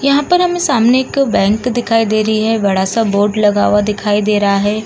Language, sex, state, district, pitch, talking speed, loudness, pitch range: Hindi, female, Uttar Pradesh, Budaun, 215 Hz, 235 wpm, -13 LUFS, 205-245 Hz